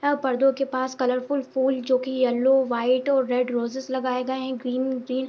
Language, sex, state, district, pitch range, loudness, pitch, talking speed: Hindi, female, Jharkhand, Jamtara, 255-265 Hz, -24 LUFS, 260 Hz, 215 wpm